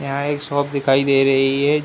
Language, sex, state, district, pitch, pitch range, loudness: Hindi, male, Uttar Pradesh, Ghazipur, 140 Hz, 135-145 Hz, -18 LUFS